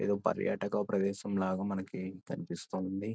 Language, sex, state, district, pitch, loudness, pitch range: Telugu, male, Andhra Pradesh, Guntur, 100 Hz, -35 LUFS, 95-100 Hz